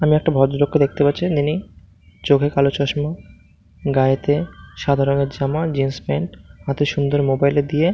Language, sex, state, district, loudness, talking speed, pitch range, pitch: Bengali, male, West Bengal, Malda, -19 LUFS, 145 wpm, 135-150 Hz, 140 Hz